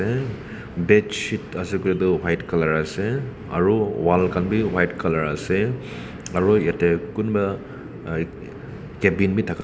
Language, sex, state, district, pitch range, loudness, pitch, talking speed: Nagamese, male, Nagaland, Kohima, 85-105 Hz, -22 LUFS, 95 Hz, 125 wpm